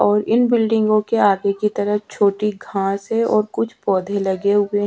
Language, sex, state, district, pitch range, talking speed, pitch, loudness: Hindi, female, Haryana, Charkhi Dadri, 200-215 Hz, 185 wpm, 205 Hz, -18 LUFS